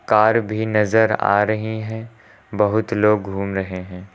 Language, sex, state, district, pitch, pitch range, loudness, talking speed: Hindi, male, Uttar Pradesh, Lucknow, 105 Hz, 100-110 Hz, -19 LUFS, 160 wpm